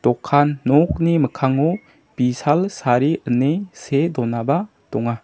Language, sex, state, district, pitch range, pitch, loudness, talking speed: Garo, male, Meghalaya, South Garo Hills, 125-165 Hz, 145 Hz, -19 LUFS, 105 wpm